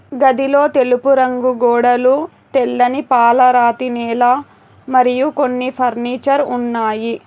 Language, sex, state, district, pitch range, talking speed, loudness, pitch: Telugu, female, Telangana, Hyderabad, 245-270 Hz, 40 wpm, -14 LUFS, 250 Hz